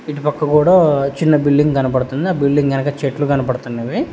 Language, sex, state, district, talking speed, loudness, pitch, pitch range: Telugu, male, Telangana, Hyderabad, 145 wpm, -16 LUFS, 145 Hz, 135-150 Hz